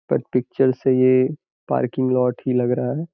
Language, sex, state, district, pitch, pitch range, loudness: Hindi, male, Uttar Pradesh, Gorakhpur, 130 Hz, 125-130 Hz, -20 LUFS